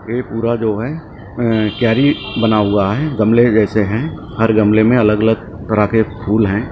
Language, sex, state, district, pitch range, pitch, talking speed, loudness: Hindi, male, Maharashtra, Mumbai Suburban, 105-120 Hz, 110 Hz, 190 wpm, -15 LUFS